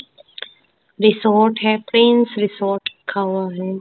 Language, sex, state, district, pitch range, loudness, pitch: Hindi, female, Punjab, Kapurthala, 195-220 Hz, -17 LUFS, 215 Hz